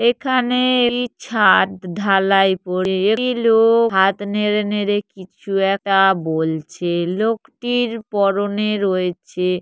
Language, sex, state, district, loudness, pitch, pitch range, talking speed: Bengali, female, West Bengal, Jhargram, -18 LUFS, 200 Hz, 190-230 Hz, 100 wpm